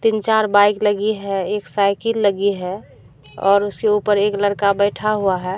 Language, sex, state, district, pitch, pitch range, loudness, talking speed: Hindi, female, Bihar, Katihar, 205 Hz, 195-210 Hz, -18 LUFS, 180 wpm